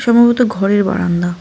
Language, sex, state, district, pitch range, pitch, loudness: Bengali, female, West Bengal, Cooch Behar, 180-235 Hz, 200 Hz, -14 LUFS